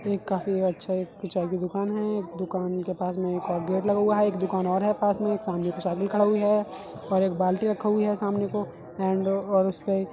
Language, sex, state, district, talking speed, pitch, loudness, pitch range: Hindi, male, Uttar Pradesh, Etah, 250 wpm, 190 Hz, -26 LUFS, 185-205 Hz